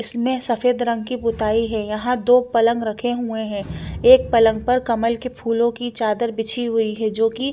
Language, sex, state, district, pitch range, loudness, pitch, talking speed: Hindi, female, Chandigarh, Chandigarh, 225-245 Hz, -19 LUFS, 230 Hz, 200 wpm